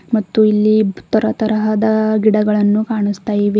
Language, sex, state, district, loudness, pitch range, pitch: Kannada, female, Karnataka, Bidar, -15 LUFS, 210-220 Hz, 215 Hz